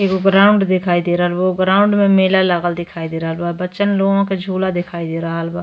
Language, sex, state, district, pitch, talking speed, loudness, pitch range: Bhojpuri, female, Uttar Pradesh, Ghazipur, 185 Hz, 245 wpm, -16 LUFS, 175-195 Hz